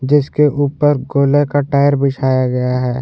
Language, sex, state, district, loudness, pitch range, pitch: Hindi, male, Jharkhand, Ranchi, -14 LUFS, 130-145 Hz, 140 Hz